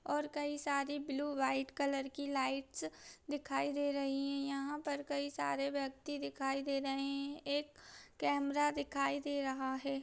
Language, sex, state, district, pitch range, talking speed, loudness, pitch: Hindi, female, Bihar, Saharsa, 270-290 Hz, 160 wpm, -38 LUFS, 280 Hz